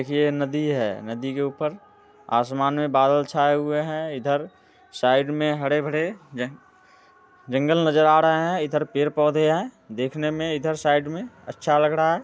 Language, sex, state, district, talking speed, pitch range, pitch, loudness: Hindi, male, Bihar, Muzaffarpur, 180 wpm, 140-160 Hz, 150 Hz, -23 LUFS